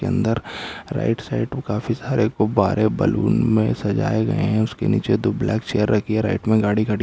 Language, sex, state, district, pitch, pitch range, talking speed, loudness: Hindi, male, Uttar Pradesh, Hamirpur, 110 Hz, 105-115 Hz, 205 wpm, -21 LUFS